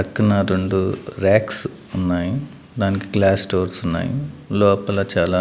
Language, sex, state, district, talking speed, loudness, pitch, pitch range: Telugu, male, Andhra Pradesh, Manyam, 110 wpm, -19 LUFS, 95 Hz, 95-100 Hz